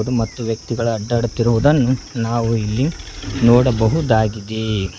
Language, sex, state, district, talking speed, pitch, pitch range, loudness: Kannada, male, Karnataka, Koppal, 70 wpm, 115 Hz, 110-120 Hz, -18 LUFS